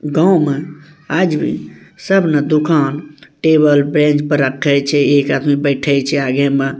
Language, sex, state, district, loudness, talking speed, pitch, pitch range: Maithili, male, Bihar, Bhagalpur, -14 LUFS, 165 wpm, 145 Hz, 140-155 Hz